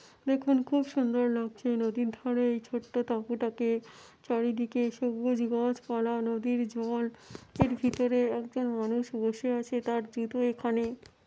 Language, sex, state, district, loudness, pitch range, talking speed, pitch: Bengali, female, West Bengal, Jhargram, -31 LUFS, 230-245 Hz, 130 wpm, 240 Hz